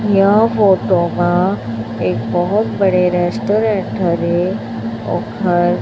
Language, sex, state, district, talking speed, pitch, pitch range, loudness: Hindi, male, Chhattisgarh, Raipur, 85 wpm, 180 Hz, 170-195 Hz, -16 LUFS